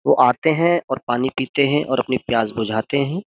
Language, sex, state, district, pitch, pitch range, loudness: Hindi, male, Uttar Pradesh, Jyotiba Phule Nagar, 130 Hz, 120-145 Hz, -19 LUFS